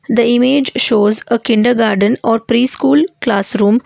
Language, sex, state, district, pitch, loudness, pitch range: English, female, Karnataka, Bangalore, 235 Hz, -13 LUFS, 220-260 Hz